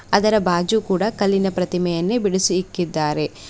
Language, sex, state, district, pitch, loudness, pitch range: Kannada, female, Karnataka, Bidar, 185 Hz, -20 LUFS, 175-200 Hz